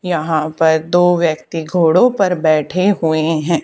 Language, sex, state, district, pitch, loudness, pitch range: Hindi, female, Haryana, Charkhi Dadri, 165 Hz, -15 LUFS, 155-175 Hz